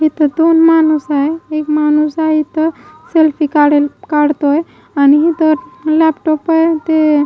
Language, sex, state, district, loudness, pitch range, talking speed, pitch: Marathi, female, Maharashtra, Mumbai Suburban, -12 LUFS, 300-320 Hz, 130 wpm, 310 Hz